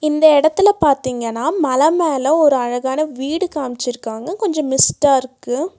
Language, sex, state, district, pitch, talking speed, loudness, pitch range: Tamil, female, Tamil Nadu, Nilgiris, 290 Hz, 125 wpm, -16 LUFS, 260-315 Hz